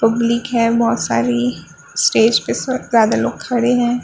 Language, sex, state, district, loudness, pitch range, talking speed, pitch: Hindi, female, Maharashtra, Gondia, -16 LUFS, 160-240 Hz, 165 wpm, 230 Hz